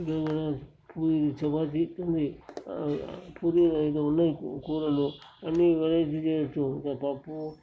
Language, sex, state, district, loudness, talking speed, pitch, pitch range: Telugu, male, Telangana, Karimnagar, -28 LUFS, 110 wpm, 155 Hz, 150-165 Hz